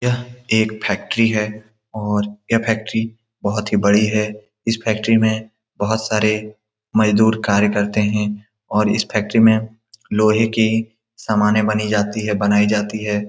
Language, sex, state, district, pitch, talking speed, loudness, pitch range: Hindi, male, Bihar, Saran, 110 Hz, 150 wpm, -18 LUFS, 105-110 Hz